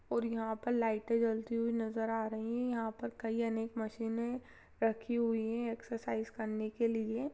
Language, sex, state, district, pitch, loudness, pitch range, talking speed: Hindi, female, Rajasthan, Churu, 225 Hz, -36 LUFS, 225-235 Hz, 180 wpm